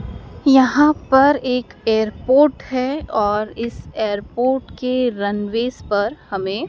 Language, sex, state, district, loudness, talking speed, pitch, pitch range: Hindi, female, Madhya Pradesh, Dhar, -18 LUFS, 110 wpm, 250 Hz, 210-265 Hz